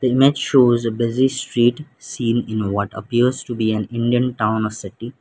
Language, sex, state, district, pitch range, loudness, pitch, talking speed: English, male, Sikkim, Gangtok, 110-130 Hz, -19 LUFS, 120 Hz, 195 wpm